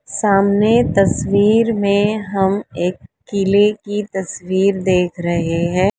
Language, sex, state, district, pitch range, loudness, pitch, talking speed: Hindi, female, Uttar Pradesh, Lalitpur, 185-205 Hz, -16 LUFS, 200 Hz, 110 wpm